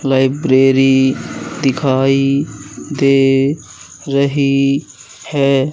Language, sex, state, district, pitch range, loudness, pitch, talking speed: Hindi, male, Madhya Pradesh, Katni, 130-140 Hz, -14 LUFS, 135 Hz, 50 wpm